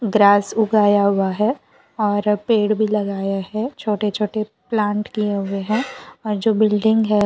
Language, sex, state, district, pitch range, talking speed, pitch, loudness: Hindi, female, Gujarat, Valsad, 205-220 Hz, 165 wpm, 210 Hz, -19 LUFS